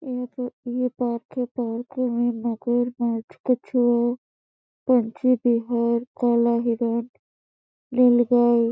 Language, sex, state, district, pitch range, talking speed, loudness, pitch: Hindi, female, Chhattisgarh, Bastar, 235-250 Hz, 80 wpm, -23 LUFS, 240 Hz